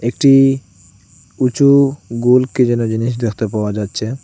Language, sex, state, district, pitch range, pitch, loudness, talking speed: Bengali, male, Assam, Hailakandi, 110-135 Hz, 120 Hz, -15 LUFS, 125 wpm